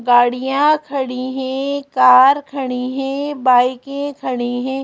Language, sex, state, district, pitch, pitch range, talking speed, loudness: Hindi, female, Madhya Pradesh, Bhopal, 265 Hz, 255-280 Hz, 110 wpm, -16 LUFS